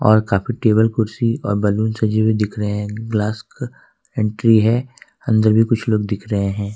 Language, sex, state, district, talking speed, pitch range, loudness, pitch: Hindi, male, Jharkhand, Ranchi, 170 wpm, 105-110 Hz, -18 LUFS, 110 Hz